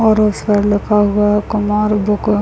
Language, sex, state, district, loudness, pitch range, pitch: Hindi, male, Bihar, Muzaffarpur, -14 LUFS, 205-210 Hz, 210 Hz